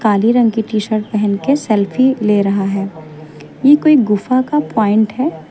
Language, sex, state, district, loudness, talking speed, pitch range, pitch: Hindi, female, Uttar Pradesh, Lucknow, -14 LUFS, 185 wpm, 200-255 Hz, 215 Hz